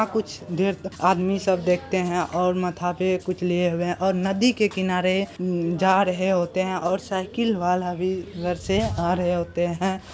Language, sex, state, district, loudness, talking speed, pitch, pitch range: Hindi, male, Bihar, Kishanganj, -23 LUFS, 195 wpm, 185 Hz, 180-190 Hz